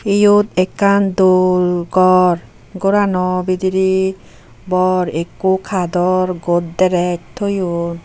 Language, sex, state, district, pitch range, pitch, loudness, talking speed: Chakma, female, Tripura, Unakoti, 175-190 Hz, 185 Hz, -15 LUFS, 80 wpm